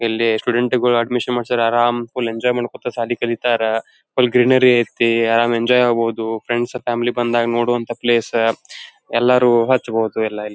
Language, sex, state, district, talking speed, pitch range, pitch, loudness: Kannada, male, Karnataka, Dharwad, 140 wpm, 115-120 Hz, 120 Hz, -17 LUFS